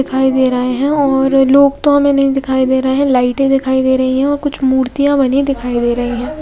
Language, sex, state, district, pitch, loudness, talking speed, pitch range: Hindi, female, Odisha, Nuapada, 265 Hz, -13 LUFS, 235 wpm, 260-280 Hz